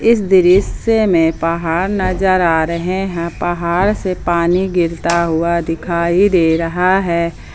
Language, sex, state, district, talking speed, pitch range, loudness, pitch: Hindi, female, Jharkhand, Palamu, 135 wpm, 170-185 Hz, -15 LUFS, 175 Hz